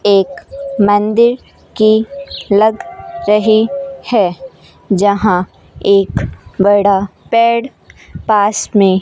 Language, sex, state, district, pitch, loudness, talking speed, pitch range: Hindi, female, Rajasthan, Bikaner, 210 Hz, -13 LUFS, 85 wpm, 200-235 Hz